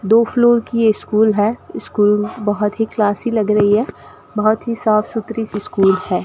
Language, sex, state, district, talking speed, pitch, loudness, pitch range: Hindi, female, Rajasthan, Bikaner, 170 wpm, 215 Hz, -16 LUFS, 210-225 Hz